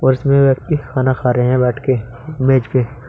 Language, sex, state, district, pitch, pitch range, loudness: Hindi, male, Uttar Pradesh, Saharanpur, 130 Hz, 125-135 Hz, -15 LUFS